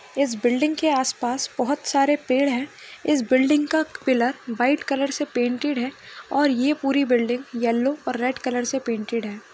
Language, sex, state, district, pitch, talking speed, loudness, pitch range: Hindi, female, West Bengal, Kolkata, 260 Hz, 175 wpm, -23 LUFS, 245-285 Hz